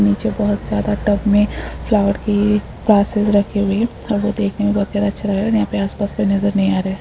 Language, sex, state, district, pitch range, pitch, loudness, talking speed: Hindi, female, Uttar Pradesh, Deoria, 200-210 Hz, 205 Hz, -17 LUFS, 280 wpm